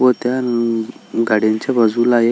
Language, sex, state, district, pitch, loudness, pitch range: Marathi, male, Maharashtra, Solapur, 120 Hz, -17 LUFS, 115-125 Hz